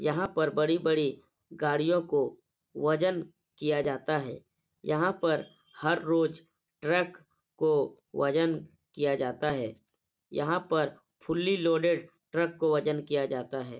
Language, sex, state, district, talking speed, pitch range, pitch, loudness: Hindi, male, Bihar, Supaul, 125 wpm, 150-170 Hz, 160 Hz, -30 LUFS